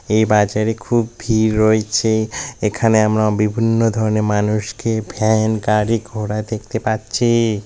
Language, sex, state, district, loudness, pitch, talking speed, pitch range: Bengali, male, West Bengal, Malda, -17 LUFS, 110 Hz, 120 wpm, 105-115 Hz